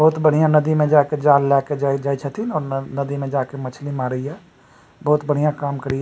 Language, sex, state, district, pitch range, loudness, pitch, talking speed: Maithili, male, Bihar, Supaul, 140-150 Hz, -19 LUFS, 140 Hz, 240 wpm